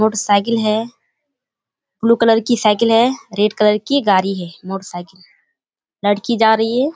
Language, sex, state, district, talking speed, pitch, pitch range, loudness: Hindi, female, Bihar, Kishanganj, 170 wpm, 220 Hz, 205-235 Hz, -16 LUFS